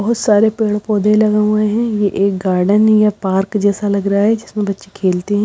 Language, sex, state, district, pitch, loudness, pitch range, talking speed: Hindi, female, Bihar, Katihar, 210 Hz, -15 LUFS, 200-215 Hz, 210 wpm